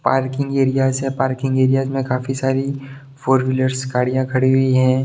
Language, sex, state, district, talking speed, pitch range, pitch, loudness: Hindi, male, Bihar, Sitamarhi, 165 wpm, 130-135 Hz, 130 Hz, -18 LUFS